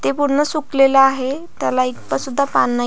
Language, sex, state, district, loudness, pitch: Marathi, female, Maharashtra, Pune, -17 LUFS, 270 Hz